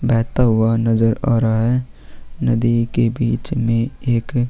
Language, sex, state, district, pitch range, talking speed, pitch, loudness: Hindi, male, Chhattisgarh, Sukma, 115-125 Hz, 160 wpm, 115 Hz, -18 LUFS